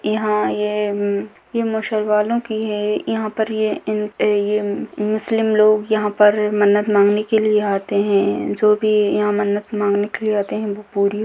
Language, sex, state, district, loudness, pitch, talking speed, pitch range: Hindi, female, Rajasthan, Nagaur, -18 LUFS, 210 Hz, 160 wpm, 205-215 Hz